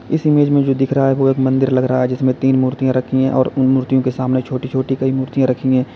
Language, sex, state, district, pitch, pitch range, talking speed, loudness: Hindi, male, Uttar Pradesh, Lalitpur, 130 Hz, 130-135 Hz, 290 wpm, -16 LUFS